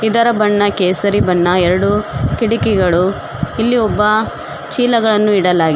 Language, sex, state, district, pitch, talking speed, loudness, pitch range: Kannada, female, Karnataka, Koppal, 205 Hz, 115 wpm, -14 LUFS, 180-220 Hz